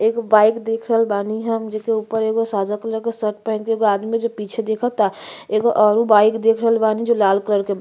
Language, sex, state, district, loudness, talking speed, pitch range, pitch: Bhojpuri, female, Uttar Pradesh, Ghazipur, -18 LUFS, 230 wpm, 210-225 Hz, 220 Hz